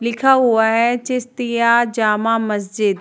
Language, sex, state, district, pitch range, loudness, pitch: Hindi, female, Uttar Pradesh, Jalaun, 220-240 Hz, -16 LUFS, 235 Hz